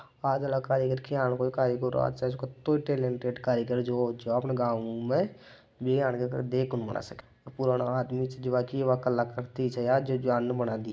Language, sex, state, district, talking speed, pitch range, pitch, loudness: Marwari, male, Rajasthan, Nagaur, 165 wpm, 125-130 Hz, 125 Hz, -29 LUFS